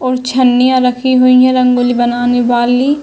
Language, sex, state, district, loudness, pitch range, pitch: Hindi, female, Uttar Pradesh, Hamirpur, -11 LUFS, 245-255 Hz, 255 Hz